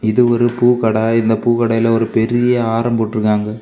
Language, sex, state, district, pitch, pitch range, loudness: Tamil, male, Tamil Nadu, Kanyakumari, 115 Hz, 110-120 Hz, -15 LUFS